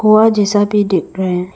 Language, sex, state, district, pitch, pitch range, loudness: Hindi, female, Arunachal Pradesh, Lower Dibang Valley, 205 Hz, 185-210 Hz, -14 LUFS